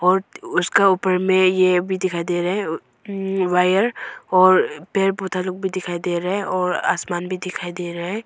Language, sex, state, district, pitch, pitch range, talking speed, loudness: Hindi, female, Arunachal Pradesh, Longding, 185 Hz, 180-190 Hz, 210 wpm, -20 LUFS